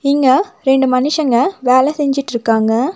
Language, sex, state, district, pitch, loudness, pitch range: Tamil, female, Tamil Nadu, Nilgiris, 265 Hz, -14 LUFS, 250-290 Hz